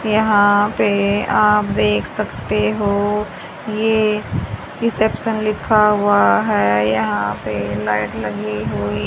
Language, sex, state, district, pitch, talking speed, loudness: Hindi, female, Haryana, Charkhi Dadri, 200 Hz, 105 wpm, -17 LUFS